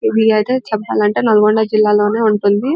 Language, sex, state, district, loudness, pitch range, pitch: Telugu, female, Telangana, Nalgonda, -14 LUFS, 210-225 Hz, 215 Hz